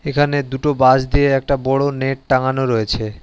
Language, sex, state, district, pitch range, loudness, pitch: Bengali, male, West Bengal, Alipurduar, 130-140 Hz, -17 LUFS, 135 Hz